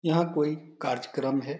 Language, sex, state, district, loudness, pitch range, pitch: Hindi, male, Bihar, Saran, -29 LUFS, 135-160 Hz, 150 Hz